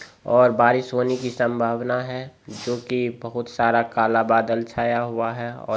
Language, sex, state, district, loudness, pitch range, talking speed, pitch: Hindi, male, Bihar, Jamui, -22 LUFS, 115-125 Hz, 145 wpm, 120 Hz